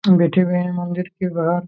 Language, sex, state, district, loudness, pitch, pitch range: Hindi, male, Jharkhand, Jamtara, -19 LUFS, 180 Hz, 175-185 Hz